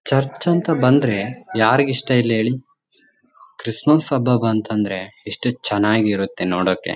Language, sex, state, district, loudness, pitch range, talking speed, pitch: Kannada, male, Karnataka, Bellary, -19 LUFS, 105-135 Hz, 120 wpm, 120 Hz